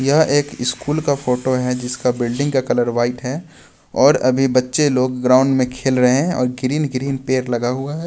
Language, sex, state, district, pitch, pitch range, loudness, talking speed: Hindi, male, Bihar, West Champaran, 130 Hz, 125-140 Hz, -18 LUFS, 210 wpm